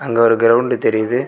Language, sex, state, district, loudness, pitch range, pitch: Tamil, male, Tamil Nadu, Kanyakumari, -14 LUFS, 115-125 Hz, 115 Hz